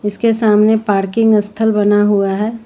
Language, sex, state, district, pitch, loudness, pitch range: Hindi, female, Jharkhand, Ranchi, 210 Hz, -13 LUFS, 205-220 Hz